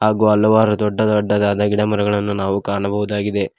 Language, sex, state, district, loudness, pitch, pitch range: Kannada, male, Karnataka, Koppal, -17 LUFS, 105 Hz, 100-105 Hz